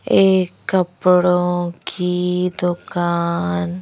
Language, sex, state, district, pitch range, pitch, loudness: Hindi, female, Madhya Pradesh, Bhopal, 175-180 Hz, 180 Hz, -18 LUFS